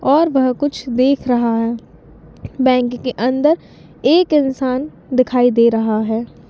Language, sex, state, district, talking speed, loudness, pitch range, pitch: Hindi, female, Bihar, East Champaran, 140 wpm, -16 LUFS, 240-275 Hz, 255 Hz